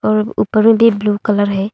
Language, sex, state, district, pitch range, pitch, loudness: Hindi, female, Arunachal Pradesh, Longding, 205-220 Hz, 210 Hz, -14 LUFS